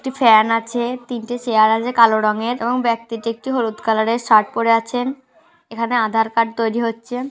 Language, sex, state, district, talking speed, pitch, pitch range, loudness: Bengali, female, West Bengal, North 24 Parganas, 190 wpm, 230 Hz, 225-245 Hz, -18 LUFS